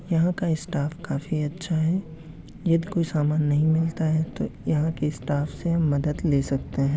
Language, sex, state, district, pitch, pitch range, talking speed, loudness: Hindi, male, Uttar Pradesh, Etah, 155 Hz, 150-165 Hz, 180 wpm, -25 LUFS